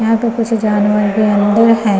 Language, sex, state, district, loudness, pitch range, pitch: Hindi, female, Uttar Pradesh, Gorakhpur, -13 LUFS, 205-230 Hz, 215 Hz